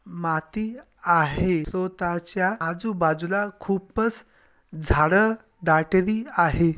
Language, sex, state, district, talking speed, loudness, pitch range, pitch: Marathi, male, Maharashtra, Sindhudurg, 90 wpm, -24 LUFS, 165-210 Hz, 180 Hz